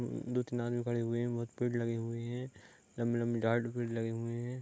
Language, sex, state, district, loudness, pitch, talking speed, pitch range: Hindi, male, Bihar, Gopalganj, -36 LUFS, 120 Hz, 235 wpm, 115-120 Hz